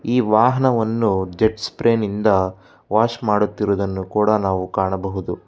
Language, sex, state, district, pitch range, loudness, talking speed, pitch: Kannada, male, Karnataka, Bangalore, 95-110 Hz, -19 LUFS, 100 wpm, 105 Hz